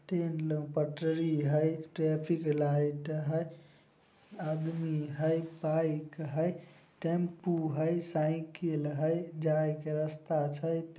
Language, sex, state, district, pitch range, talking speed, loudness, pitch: Maithili, male, Bihar, Samastipur, 155-165 Hz, 100 wpm, -33 LUFS, 160 Hz